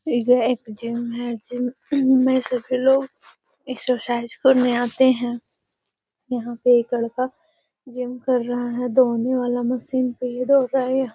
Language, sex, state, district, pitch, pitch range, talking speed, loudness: Magahi, female, Bihar, Gaya, 250 Hz, 240-260 Hz, 160 wpm, -21 LUFS